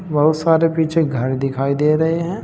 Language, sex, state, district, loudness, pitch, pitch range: Hindi, male, Uttar Pradesh, Saharanpur, -17 LUFS, 155 Hz, 140-165 Hz